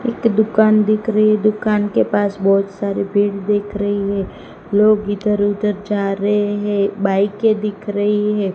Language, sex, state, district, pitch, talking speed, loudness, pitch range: Hindi, female, Gujarat, Gandhinagar, 205 Hz, 160 wpm, -17 LUFS, 200-215 Hz